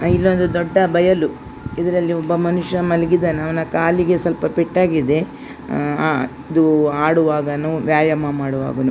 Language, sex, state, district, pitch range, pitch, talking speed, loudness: Kannada, female, Karnataka, Dakshina Kannada, 150-175 Hz, 165 Hz, 115 wpm, -18 LUFS